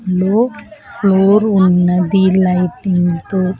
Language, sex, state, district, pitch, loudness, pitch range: Telugu, female, Andhra Pradesh, Sri Satya Sai, 190 Hz, -13 LUFS, 180-205 Hz